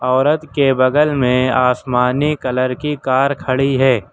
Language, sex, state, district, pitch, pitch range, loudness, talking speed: Hindi, male, Uttar Pradesh, Lucknow, 130 Hz, 125-145 Hz, -16 LUFS, 145 wpm